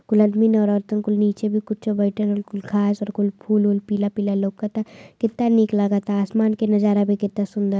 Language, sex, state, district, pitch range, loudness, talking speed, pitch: Hindi, male, Uttar Pradesh, Varanasi, 205-215 Hz, -21 LUFS, 215 wpm, 210 Hz